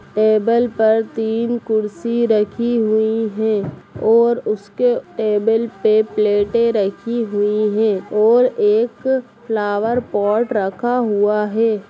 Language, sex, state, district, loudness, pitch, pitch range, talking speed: Hindi, female, Bihar, Samastipur, -17 LUFS, 220 Hz, 210-235 Hz, 110 wpm